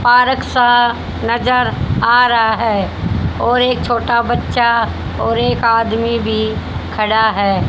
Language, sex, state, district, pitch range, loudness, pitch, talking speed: Hindi, female, Haryana, Rohtak, 225-245 Hz, -14 LUFS, 235 Hz, 125 wpm